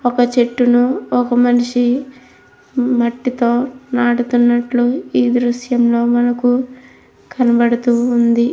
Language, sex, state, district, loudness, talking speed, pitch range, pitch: Telugu, female, Andhra Pradesh, Krishna, -15 LUFS, 85 wpm, 240-245 Hz, 245 Hz